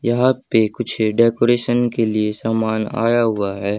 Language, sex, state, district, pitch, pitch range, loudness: Hindi, male, Haryana, Charkhi Dadri, 115 Hz, 110-120 Hz, -18 LUFS